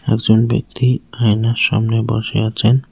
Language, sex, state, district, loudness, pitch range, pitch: Bengali, male, West Bengal, Cooch Behar, -16 LUFS, 110-125 Hz, 115 Hz